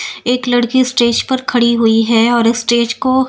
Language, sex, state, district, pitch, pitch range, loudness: Hindi, female, Bihar, Patna, 240 Hz, 235-255 Hz, -13 LUFS